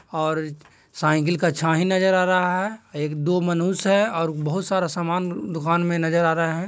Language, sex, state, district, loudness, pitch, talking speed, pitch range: Hindi, male, Bihar, Jahanabad, -22 LUFS, 170 Hz, 195 wpm, 160-185 Hz